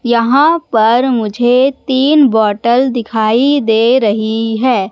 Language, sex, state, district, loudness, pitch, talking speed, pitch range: Hindi, female, Madhya Pradesh, Katni, -12 LUFS, 240 Hz, 110 wpm, 220-265 Hz